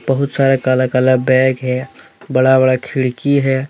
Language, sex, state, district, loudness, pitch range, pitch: Hindi, male, Jharkhand, Deoghar, -14 LUFS, 130-135 Hz, 130 Hz